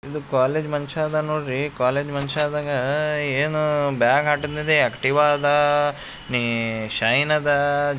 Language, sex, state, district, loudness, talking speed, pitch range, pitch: Kannada, male, Karnataka, Gulbarga, -21 LUFS, 105 wpm, 140-150 Hz, 145 Hz